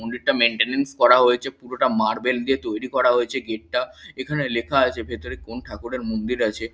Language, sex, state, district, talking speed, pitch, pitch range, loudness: Bengali, male, West Bengal, Kolkata, 170 wpm, 125 Hz, 115-130 Hz, -21 LUFS